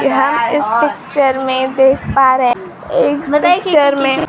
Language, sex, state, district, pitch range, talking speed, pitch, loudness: Hindi, female, Bihar, Kaimur, 260-290 Hz, 140 wpm, 270 Hz, -13 LUFS